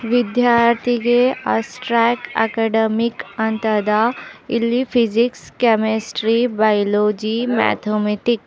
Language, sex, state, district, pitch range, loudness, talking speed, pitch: Kannada, female, Karnataka, Bidar, 220-240 Hz, -18 LUFS, 70 wpm, 230 Hz